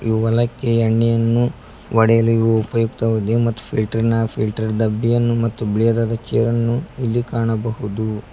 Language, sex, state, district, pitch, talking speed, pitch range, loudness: Kannada, male, Karnataka, Koppal, 115 Hz, 115 wpm, 110-115 Hz, -18 LUFS